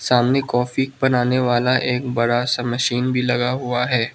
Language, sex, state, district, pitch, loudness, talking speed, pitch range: Hindi, male, Manipur, Imphal West, 125 Hz, -19 LUFS, 175 wpm, 120-130 Hz